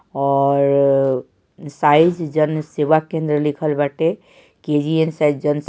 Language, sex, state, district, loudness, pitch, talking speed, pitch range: Bhojpuri, male, Bihar, Saran, -18 LUFS, 150 Hz, 105 wpm, 140-155 Hz